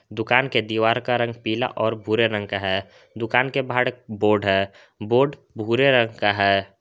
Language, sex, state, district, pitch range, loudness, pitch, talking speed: Hindi, male, Jharkhand, Garhwa, 105-125 Hz, -21 LUFS, 110 Hz, 195 wpm